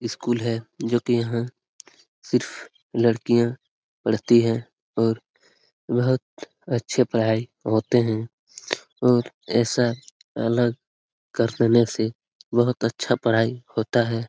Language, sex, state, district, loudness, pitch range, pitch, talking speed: Hindi, male, Bihar, Lakhisarai, -23 LUFS, 115-120 Hz, 120 Hz, 110 wpm